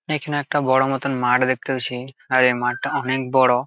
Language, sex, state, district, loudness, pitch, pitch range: Bengali, male, West Bengal, Jalpaiguri, -20 LUFS, 130 Hz, 125-140 Hz